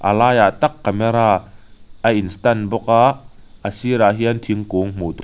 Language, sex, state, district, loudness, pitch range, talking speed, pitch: Mizo, male, Mizoram, Aizawl, -17 LUFS, 100-115 Hz, 170 wpm, 110 Hz